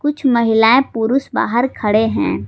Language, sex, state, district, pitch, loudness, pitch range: Hindi, female, Jharkhand, Garhwa, 240 Hz, -15 LUFS, 225-265 Hz